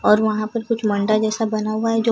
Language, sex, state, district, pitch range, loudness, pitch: Hindi, female, Maharashtra, Gondia, 215-225 Hz, -20 LUFS, 215 Hz